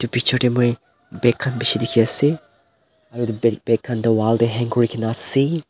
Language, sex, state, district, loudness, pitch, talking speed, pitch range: Nagamese, male, Nagaland, Dimapur, -19 LUFS, 120 Hz, 180 wpm, 115-130 Hz